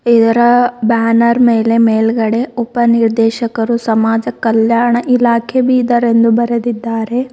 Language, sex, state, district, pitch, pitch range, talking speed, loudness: Kannada, female, Karnataka, Bidar, 235 Hz, 225-240 Hz, 100 wpm, -12 LUFS